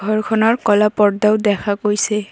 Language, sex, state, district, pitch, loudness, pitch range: Assamese, female, Assam, Kamrup Metropolitan, 210 Hz, -16 LUFS, 205-215 Hz